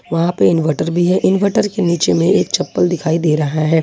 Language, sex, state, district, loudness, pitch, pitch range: Hindi, female, Jharkhand, Ranchi, -15 LUFS, 170 Hz, 160-180 Hz